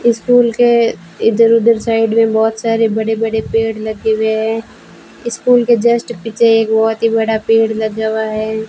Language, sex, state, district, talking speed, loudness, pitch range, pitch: Hindi, female, Rajasthan, Bikaner, 180 wpm, -14 LUFS, 220-230 Hz, 225 Hz